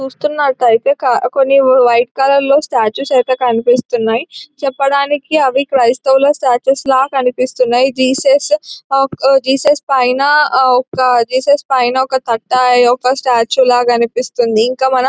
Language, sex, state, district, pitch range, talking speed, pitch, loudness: Telugu, male, Telangana, Nalgonda, 245-275 Hz, 125 wpm, 260 Hz, -12 LUFS